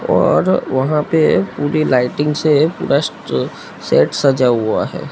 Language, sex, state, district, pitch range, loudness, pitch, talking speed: Hindi, male, Gujarat, Gandhinagar, 130-155 Hz, -15 LUFS, 145 Hz, 130 wpm